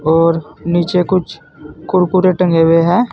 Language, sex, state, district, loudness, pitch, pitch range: Hindi, male, Uttar Pradesh, Saharanpur, -13 LUFS, 165 Hz, 165-180 Hz